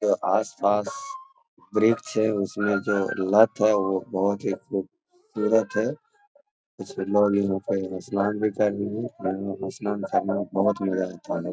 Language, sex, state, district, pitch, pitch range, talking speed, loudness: Hindi, male, Bihar, Jamui, 105 Hz, 95-115 Hz, 150 wpm, -25 LUFS